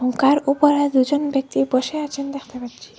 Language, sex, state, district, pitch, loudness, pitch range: Bengali, female, Assam, Hailakandi, 275 Hz, -19 LUFS, 260-290 Hz